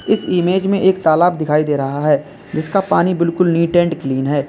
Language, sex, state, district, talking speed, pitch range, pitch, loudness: Hindi, male, Uttar Pradesh, Lalitpur, 215 wpm, 150-180 Hz, 170 Hz, -16 LUFS